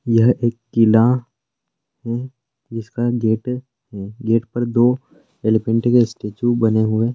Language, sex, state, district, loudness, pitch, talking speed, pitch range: Hindi, male, Rajasthan, Nagaur, -18 LUFS, 120 Hz, 135 wpm, 115-125 Hz